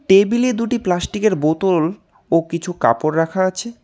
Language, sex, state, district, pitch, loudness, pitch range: Bengali, male, West Bengal, Alipurduar, 185 Hz, -18 LUFS, 165-215 Hz